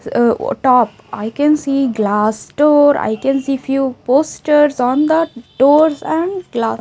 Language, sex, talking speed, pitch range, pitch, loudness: English, female, 160 wpm, 240-295 Hz, 275 Hz, -15 LUFS